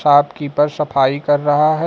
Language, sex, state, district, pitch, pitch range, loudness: Hindi, male, Uttar Pradesh, Lucknow, 145 Hz, 145-150 Hz, -16 LUFS